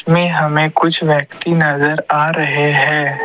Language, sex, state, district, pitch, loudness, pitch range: Hindi, male, Assam, Kamrup Metropolitan, 150 Hz, -14 LUFS, 150-165 Hz